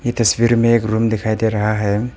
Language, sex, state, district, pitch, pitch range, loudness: Hindi, male, Arunachal Pradesh, Papum Pare, 110 Hz, 110-115 Hz, -16 LUFS